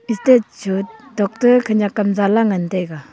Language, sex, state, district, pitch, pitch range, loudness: Wancho, female, Arunachal Pradesh, Longding, 205 Hz, 195-230 Hz, -17 LUFS